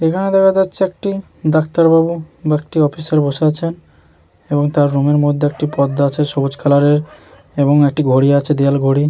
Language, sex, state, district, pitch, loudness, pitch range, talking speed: Bengali, male, West Bengal, Jhargram, 150 Hz, -15 LUFS, 140-165 Hz, 180 wpm